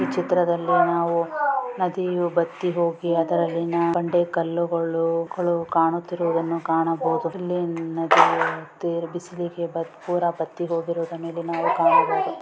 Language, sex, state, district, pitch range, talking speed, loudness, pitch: Kannada, female, Karnataka, Dakshina Kannada, 165-175 Hz, 90 wpm, -23 LUFS, 170 Hz